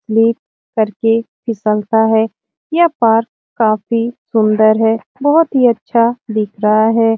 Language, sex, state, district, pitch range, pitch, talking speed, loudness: Hindi, female, Bihar, Lakhisarai, 220-235 Hz, 225 Hz, 125 wpm, -14 LUFS